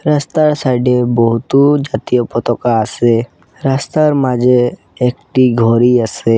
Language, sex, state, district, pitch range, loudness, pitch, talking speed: Bengali, male, Assam, Kamrup Metropolitan, 115-135 Hz, -13 LUFS, 125 Hz, 115 wpm